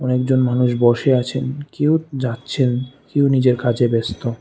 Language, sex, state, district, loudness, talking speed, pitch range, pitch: Bengali, male, Tripura, West Tripura, -18 LUFS, 135 wpm, 120-135 Hz, 125 Hz